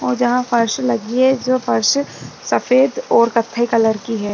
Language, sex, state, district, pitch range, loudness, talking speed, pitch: Hindi, female, Chhattisgarh, Rajnandgaon, 230-255 Hz, -16 LUFS, 165 wpm, 240 Hz